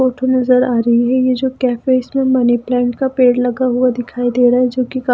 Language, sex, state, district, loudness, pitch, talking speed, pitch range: Hindi, female, Himachal Pradesh, Shimla, -14 LUFS, 250 Hz, 255 wpm, 245-255 Hz